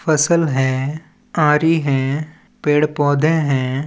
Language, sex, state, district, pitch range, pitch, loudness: Chhattisgarhi, male, Chhattisgarh, Balrampur, 140-160 Hz, 150 Hz, -17 LUFS